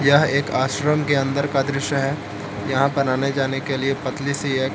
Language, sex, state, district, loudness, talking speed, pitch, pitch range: Hindi, male, Jharkhand, Palamu, -21 LUFS, 215 wpm, 140 Hz, 135-140 Hz